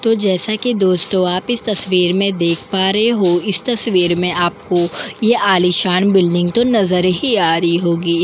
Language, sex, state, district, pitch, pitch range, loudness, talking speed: Hindi, female, Delhi, New Delhi, 185 Hz, 175-215 Hz, -14 LUFS, 180 wpm